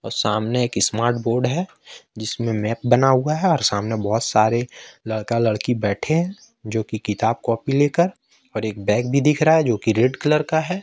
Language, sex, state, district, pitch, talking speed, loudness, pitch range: Hindi, male, Jharkhand, Ranchi, 120 Hz, 200 wpm, -20 LUFS, 110-150 Hz